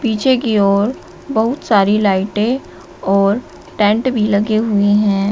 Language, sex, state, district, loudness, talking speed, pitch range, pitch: Hindi, female, Uttar Pradesh, Shamli, -15 LUFS, 135 wpm, 200-230 Hz, 210 Hz